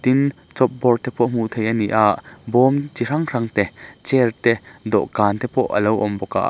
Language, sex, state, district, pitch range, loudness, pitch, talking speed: Mizo, male, Mizoram, Aizawl, 110-130 Hz, -20 LUFS, 120 Hz, 210 wpm